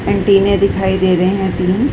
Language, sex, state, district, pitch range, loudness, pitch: Hindi, female, Chhattisgarh, Bilaspur, 185-200 Hz, -14 LUFS, 195 Hz